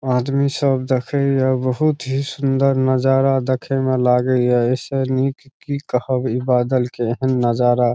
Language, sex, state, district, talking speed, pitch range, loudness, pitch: Maithili, male, Bihar, Saharsa, 160 wpm, 125-135 Hz, -18 LUFS, 130 Hz